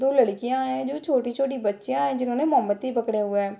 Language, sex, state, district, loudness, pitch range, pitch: Hindi, female, Bihar, Darbhanga, -25 LUFS, 215-270 Hz, 260 Hz